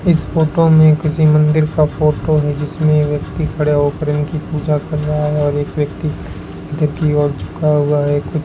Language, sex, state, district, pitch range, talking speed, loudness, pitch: Hindi, male, Rajasthan, Bikaner, 145-155 Hz, 185 wpm, -15 LUFS, 150 Hz